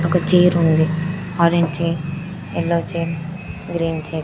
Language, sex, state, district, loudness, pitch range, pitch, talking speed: Telugu, female, Andhra Pradesh, Sri Satya Sai, -19 LUFS, 165-170 Hz, 170 Hz, 140 wpm